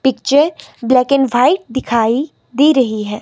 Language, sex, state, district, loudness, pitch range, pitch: Hindi, female, Himachal Pradesh, Shimla, -14 LUFS, 230-275 Hz, 255 Hz